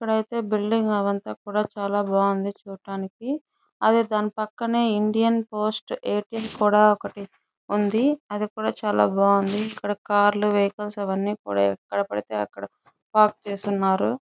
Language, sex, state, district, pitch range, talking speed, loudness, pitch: Telugu, female, Andhra Pradesh, Chittoor, 200-220 Hz, 120 wpm, -24 LUFS, 210 Hz